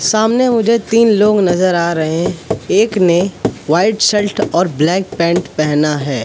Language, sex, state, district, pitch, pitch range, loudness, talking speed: Hindi, male, Madhya Pradesh, Katni, 185 Hz, 170-215 Hz, -14 LUFS, 155 wpm